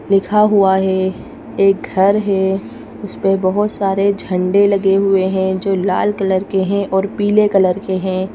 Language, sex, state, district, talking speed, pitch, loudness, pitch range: Hindi, female, Madhya Pradesh, Bhopal, 165 wpm, 195 Hz, -15 LUFS, 190-200 Hz